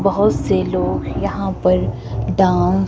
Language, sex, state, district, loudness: Hindi, female, Himachal Pradesh, Shimla, -18 LUFS